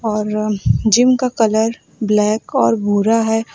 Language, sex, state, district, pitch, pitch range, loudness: Hindi, female, Uttar Pradesh, Lucknow, 220 Hz, 210-225 Hz, -16 LUFS